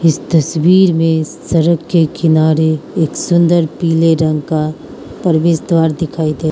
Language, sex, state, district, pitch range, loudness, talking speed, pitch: Hindi, female, Mizoram, Aizawl, 155-170 Hz, -13 LUFS, 140 wpm, 165 Hz